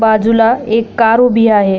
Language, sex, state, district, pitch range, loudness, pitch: Marathi, female, Maharashtra, Pune, 220-230 Hz, -11 LUFS, 225 Hz